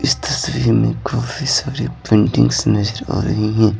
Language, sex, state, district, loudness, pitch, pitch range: Hindi, male, Bihar, Patna, -17 LUFS, 105 Hz, 105-110 Hz